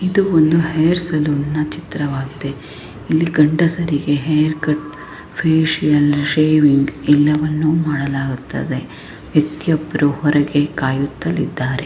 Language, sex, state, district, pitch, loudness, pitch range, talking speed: Kannada, female, Karnataka, Chamarajanagar, 150 Hz, -17 LUFS, 145-160 Hz, 80 wpm